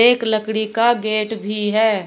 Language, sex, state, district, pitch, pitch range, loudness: Hindi, female, Uttar Pradesh, Shamli, 220 Hz, 215-225 Hz, -18 LUFS